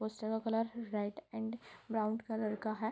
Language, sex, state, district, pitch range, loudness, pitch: Hindi, female, Bihar, Sitamarhi, 215-225 Hz, -38 LUFS, 220 Hz